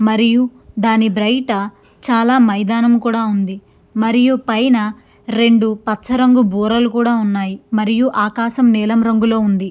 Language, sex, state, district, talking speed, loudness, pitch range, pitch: Telugu, female, Andhra Pradesh, Krishna, 125 wpm, -15 LUFS, 215-235 Hz, 225 Hz